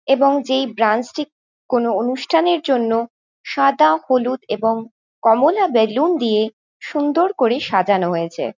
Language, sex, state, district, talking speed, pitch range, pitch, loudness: Bengali, female, West Bengal, Jhargram, 120 wpm, 225-295 Hz, 255 Hz, -18 LUFS